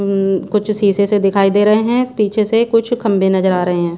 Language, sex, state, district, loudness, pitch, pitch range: Hindi, female, Haryana, Charkhi Dadri, -14 LUFS, 205 Hz, 195-215 Hz